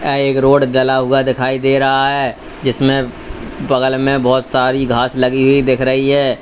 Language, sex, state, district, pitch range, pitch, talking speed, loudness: Hindi, male, Uttar Pradesh, Lalitpur, 130-135 Hz, 135 Hz, 185 wpm, -14 LUFS